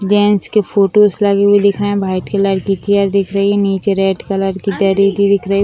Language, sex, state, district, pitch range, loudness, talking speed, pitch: Hindi, female, Bihar, Sitamarhi, 195-200 Hz, -14 LUFS, 235 wpm, 200 Hz